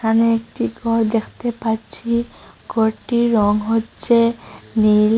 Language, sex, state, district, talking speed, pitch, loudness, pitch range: Bengali, female, Assam, Hailakandi, 105 wpm, 225 Hz, -18 LUFS, 220-235 Hz